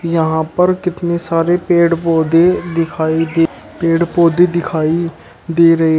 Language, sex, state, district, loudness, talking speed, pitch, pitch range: Hindi, male, Uttar Pradesh, Shamli, -14 LUFS, 130 wpm, 165 Hz, 165-170 Hz